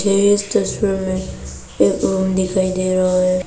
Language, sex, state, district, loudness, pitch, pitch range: Hindi, female, Arunachal Pradesh, Papum Pare, -17 LUFS, 185 Hz, 185-195 Hz